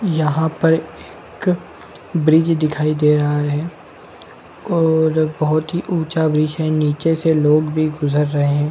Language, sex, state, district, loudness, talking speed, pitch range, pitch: Hindi, male, Chhattisgarh, Bilaspur, -17 LUFS, 140 wpm, 150-160 Hz, 155 Hz